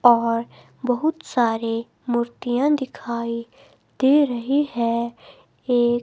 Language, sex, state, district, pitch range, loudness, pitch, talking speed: Hindi, female, Himachal Pradesh, Shimla, 235-270 Hz, -22 LUFS, 240 Hz, 90 wpm